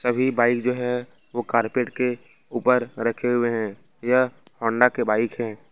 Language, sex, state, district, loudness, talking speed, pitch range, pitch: Hindi, male, Jharkhand, Ranchi, -23 LUFS, 170 wpm, 115-125 Hz, 120 Hz